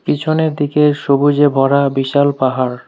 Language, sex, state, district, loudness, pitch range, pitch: Bengali, male, West Bengal, Alipurduar, -14 LUFS, 135-145 Hz, 140 Hz